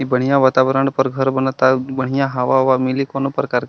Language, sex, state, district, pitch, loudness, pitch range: Bhojpuri, male, Bihar, East Champaran, 130 Hz, -17 LUFS, 130-135 Hz